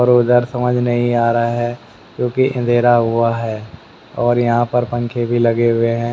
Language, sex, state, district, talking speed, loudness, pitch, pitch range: Hindi, male, Haryana, Rohtak, 185 wpm, -16 LUFS, 120 Hz, 115-120 Hz